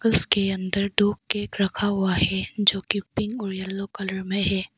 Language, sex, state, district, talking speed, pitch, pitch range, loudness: Hindi, female, Arunachal Pradesh, Lower Dibang Valley, 190 wpm, 195 Hz, 190-205 Hz, -23 LUFS